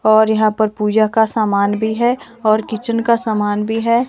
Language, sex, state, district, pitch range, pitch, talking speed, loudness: Hindi, female, Himachal Pradesh, Shimla, 215-230 Hz, 220 Hz, 190 wpm, -16 LUFS